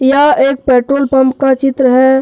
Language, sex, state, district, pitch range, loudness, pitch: Hindi, male, Jharkhand, Deoghar, 260-275 Hz, -11 LUFS, 265 Hz